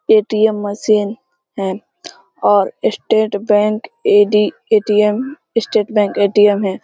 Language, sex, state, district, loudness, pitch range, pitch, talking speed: Hindi, female, Bihar, East Champaran, -15 LUFS, 205-220 Hz, 210 Hz, 105 wpm